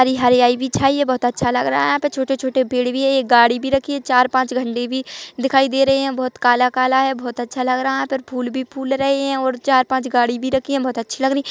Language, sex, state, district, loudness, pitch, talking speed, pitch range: Hindi, female, Chhattisgarh, Bilaspur, -18 LUFS, 260 Hz, 290 wpm, 250-270 Hz